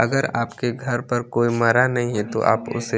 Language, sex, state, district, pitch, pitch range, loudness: Hindi, male, Chandigarh, Chandigarh, 120 Hz, 115-120 Hz, -21 LUFS